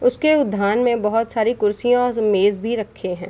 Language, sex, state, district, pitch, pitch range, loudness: Hindi, female, Bihar, Sitamarhi, 225 Hz, 205-245 Hz, -19 LUFS